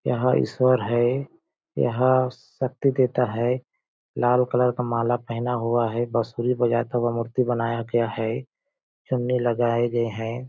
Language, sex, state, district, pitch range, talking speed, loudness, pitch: Hindi, male, Chhattisgarh, Balrampur, 115-125 Hz, 145 wpm, -23 LUFS, 120 Hz